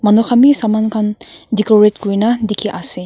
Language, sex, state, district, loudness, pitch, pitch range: Nagamese, female, Nagaland, Kohima, -13 LUFS, 215 Hz, 210-230 Hz